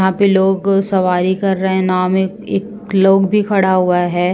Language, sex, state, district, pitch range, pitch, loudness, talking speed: Hindi, female, Uttar Pradesh, Ghazipur, 185-195 Hz, 190 Hz, -14 LUFS, 205 wpm